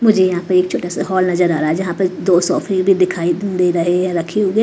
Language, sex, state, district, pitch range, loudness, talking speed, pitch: Hindi, female, Chhattisgarh, Raipur, 175-190 Hz, -16 LUFS, 285 wpm, 180 Hz